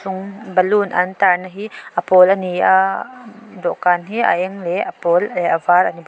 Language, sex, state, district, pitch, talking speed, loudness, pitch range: Mizo, female, Mizoram, Aizawl, 185 Hz, 215 wpm, -16 LUFS, 180-200 Hz